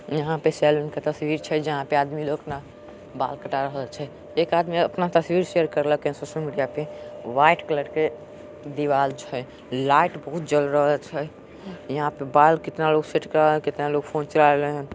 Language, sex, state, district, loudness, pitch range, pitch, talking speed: Angika, male, Bihar, Samastipur, -23 LUFS, 145-155 Hz, 150 Hz, 210 wpm